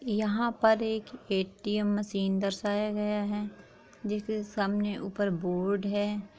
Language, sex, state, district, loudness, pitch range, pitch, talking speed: Hindi, female, Bihar, Saran, -30 LUFS, 200-215 Hz, 205 Hz, 120 wpm